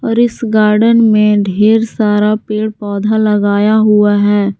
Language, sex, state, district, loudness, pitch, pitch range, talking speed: Hindi, female, Jharkhand, Garhwa, -11 LUFS, 215 Hz, 205-220 Hz, 145 wpm